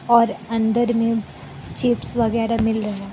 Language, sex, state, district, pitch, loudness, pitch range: Hindi, female, Bihar, Kishanganj, 230 Hz, -20 LUFS, 220-235 Hz